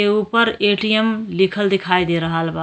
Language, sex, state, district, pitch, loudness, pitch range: Bhojpuri, female, Uttar Pradesh, Ghazipur, 205 Hz, -17 LUFS, 180-215 Hz